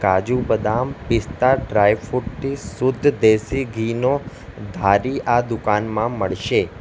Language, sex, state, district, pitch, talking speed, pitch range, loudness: Gujarati, male, Gujarat, Valsad, 115 Hz, 115 wpm, 105-130 Hz, -20 LUFS